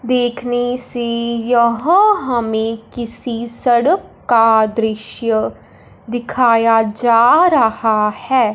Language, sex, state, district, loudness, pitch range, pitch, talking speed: Hindi, male, Punjab, Fazilka, -15 LUFS, 220-245 Hz, 235 Hz, 85 wpm